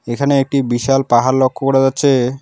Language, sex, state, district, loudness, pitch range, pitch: Bengali, male, West Bengal, Alipurduar, -14 LUFS, 125-135 Hz, 135 Hz